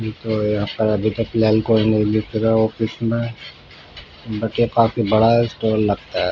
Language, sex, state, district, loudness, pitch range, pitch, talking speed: Hindi, male, Bihar, Patna, -19 LUFS, 110-115 Hz, 110 Hz, 180 wpm